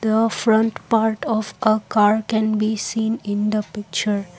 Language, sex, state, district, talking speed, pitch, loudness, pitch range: English, female, Assam, Kamrup Metropolitan, 165 wpm, 220 Hz, -20 LUFS, 210-220 Hz